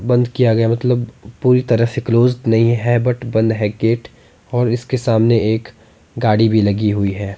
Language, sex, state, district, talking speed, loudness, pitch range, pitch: Hindi, male, Himachal Pradesh, Shimla, 185 wpm, -16 LUFS, 110-120 Hz, 115 Hz